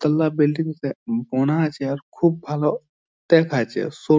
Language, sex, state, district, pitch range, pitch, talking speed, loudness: Bengali, male, West Bengal, Jhargram, 140-160 Hz, 150 Hz, 145 wpm, -21 LUFS